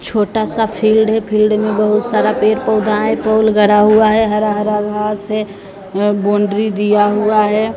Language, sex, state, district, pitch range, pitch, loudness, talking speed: Hindi, female, Bihar, Patna, 210-215 Hz, 215 Hz, -14 LUFS, 175 wpm